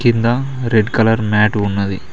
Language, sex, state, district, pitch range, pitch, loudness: Telugu, male, Telangana, Mahabubabad, 105-120 Hz, 110 Hz, -16 LUFS